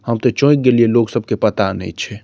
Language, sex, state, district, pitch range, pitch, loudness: Maithili, male, Bihar, Saharsa, 105-125 Hz, 115 Hz, -15 LUFS